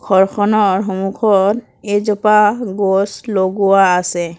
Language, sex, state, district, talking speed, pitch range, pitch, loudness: Assamese, female, Assam, Kamrup Metropolitan, 80 wpm, 190-210 Hz, 200 Hz, -14 LUFS